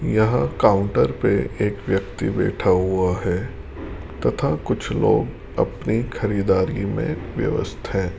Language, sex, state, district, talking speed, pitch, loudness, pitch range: Hindi, male, Rajasthan, Jaipur, 115 wpm, 95 Hz, -21 LUFS, 90-105 Hz